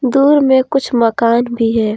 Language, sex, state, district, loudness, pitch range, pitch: Hindi, female, Jharkhand, Deoghar, -13 LUFS, 230-270 Hz, 240 Hz